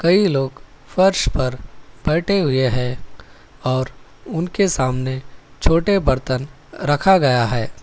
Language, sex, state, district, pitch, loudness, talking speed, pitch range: Hindi, male, Telangana, Hyderabad, 135 Hz, -19 LUFS, 115 wpm, 130-170 Hz